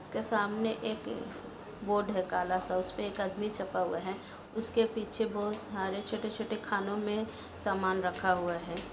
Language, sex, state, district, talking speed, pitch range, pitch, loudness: Hindi, female, Maharashtra, Solapur, 170 wpm, 185-220 Hz, 205 Hz, -34 LUFS